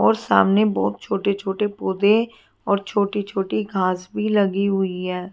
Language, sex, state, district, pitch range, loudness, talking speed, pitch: Hindi, female, Haryana, Charkhi Dadri, 185-205 Hz, -21 LUFS, 160 wpm, 195 Hz